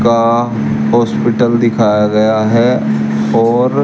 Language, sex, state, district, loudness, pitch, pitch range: Hindi, male, Haryana, Charkhi Dadri, -12 LUFS, 115 Hz, 70-120 Hz